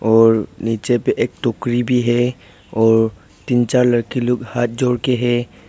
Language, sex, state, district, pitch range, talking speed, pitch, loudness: Hindi, male, Arunachal Pradesh, Papum Pare, 115-125 Hz, 170 wpm, 120 Hz, -17 LUFS